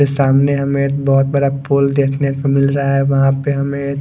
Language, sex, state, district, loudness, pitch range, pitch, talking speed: Hindi, male, Chandigarh, Chandigarh, -15 LUFS, 135-140 Hz, 140 Hz, 225 wpm